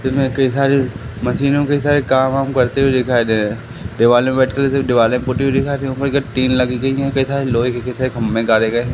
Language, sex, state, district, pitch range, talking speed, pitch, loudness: Hindi, male, Madhya Pradesh, Katni, 120-135 Hz, 95 wpm, 130 Hz, -16 LUFS